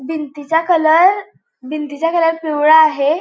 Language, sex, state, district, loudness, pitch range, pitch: Marathi, female, Goa, North and South Goa, -14 LUFS, 295-330 Hz, 315 Hz